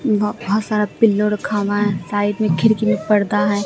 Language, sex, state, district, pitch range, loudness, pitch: Hindi, female, Bihar, Katihar, 205-215 Hz, -18 LUFS, 210 Hz